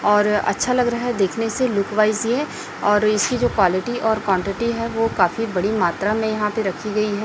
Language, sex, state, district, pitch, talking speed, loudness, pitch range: Hindi, female, Chhattisgarh, Raipur, 215 Hz, 225 wpm, -20 LUFS, 205-230 Hz